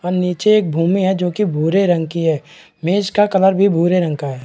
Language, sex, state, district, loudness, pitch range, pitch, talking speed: Hindi, male, Chhattisgarh, Raigarh, -16 LUFS, 165-195 Hz, 180 Hz, 255 wpm